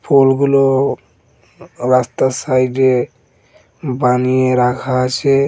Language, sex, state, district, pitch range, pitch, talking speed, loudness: Bengali, male, West Bengal, Dakshin Dinajpur, 125-135 Hz, 130 Hz, 65 wpm, -15 LUFS